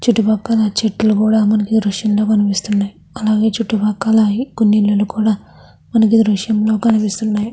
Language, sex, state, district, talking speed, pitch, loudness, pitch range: Telugu, female, Andhra Pradesh, Krishna, 125 wpm, 215 Hz, -15 LUFS, 210-220 Hz